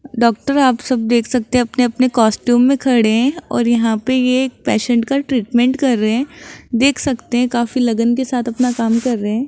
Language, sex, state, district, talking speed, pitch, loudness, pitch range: Hindi, female, Rajasthan, Jaipur, 215 wpm, 245 Hz, -16 LUFS, 235-260 Hz